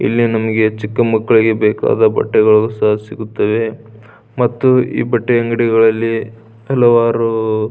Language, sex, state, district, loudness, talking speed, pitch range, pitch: Kannada, male, Karnataka, Belgaum, -14 LUFS, 100 wpm, 110-120 Hz, 115 Hz